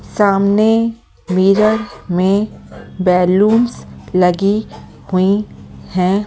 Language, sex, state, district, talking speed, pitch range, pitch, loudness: Hindi, female, Delhi, New Delhi, 75 wpm, 185-215 Hz, 200 Hz, -15 LUFS